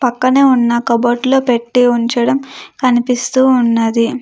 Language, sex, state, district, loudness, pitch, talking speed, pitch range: Telugu, female, Andhra Pradesh, Krishna, -13 LUFS, 245 Hz, 100 wpm, 235-260 Hz